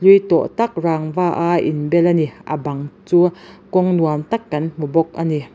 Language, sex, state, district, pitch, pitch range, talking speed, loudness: Mizo, female, Mizoram, Aizawl, 165 Hz, 155-180 Hz, 205 wpm, -18 LUFS